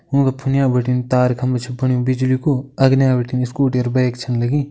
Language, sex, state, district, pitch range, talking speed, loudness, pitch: Kumaoni, male, Uttarakhand, Uttarkashi, 125-135 Hz, 205 wpm, -18 LUFS, 130 Hz